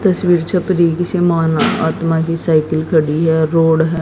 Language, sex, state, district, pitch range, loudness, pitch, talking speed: Hindi, female, Haryana, Jhajjar, 160-175 Hz, -14 LUFS, 165 Hz, 150 wpm